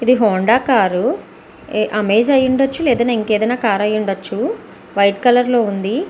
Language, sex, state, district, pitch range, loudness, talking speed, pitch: Telugu, female, Andhra Pradesh, Visakhapatnam, 205-250 Hz, -16 LUFS, 155 wpm, 225 Hz